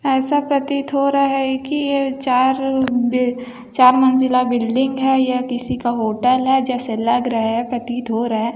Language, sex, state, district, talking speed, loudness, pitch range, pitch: Hindi, female, Chhattisgarh, Bilaspur, 180 wpm, -18 LUFS, 245-265 Hz, 255 Hz